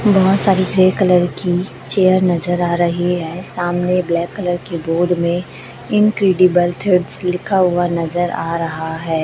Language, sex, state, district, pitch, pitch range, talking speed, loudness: Hindi, male, Chhattisgarh, Raipur, 175 Hz, 170-185 Hz, 155 wpm, -16 LUFS